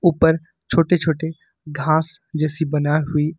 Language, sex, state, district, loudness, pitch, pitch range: Hindi, male, Jharkhand, Ranchi, -20 LUFS, 160 Hz, 155-165 Hz